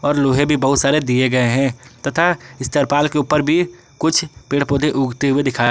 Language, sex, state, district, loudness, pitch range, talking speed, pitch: Hindi, male, Jharkhand, Ranchi, -17 LUFS, 130-150 Hz, 200 wpm, 140 Hz